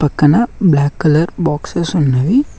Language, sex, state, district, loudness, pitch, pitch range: Telugu, male, Telangana, Mahabubabad, -14 LUFS, 155 Hz, 150-180 Hz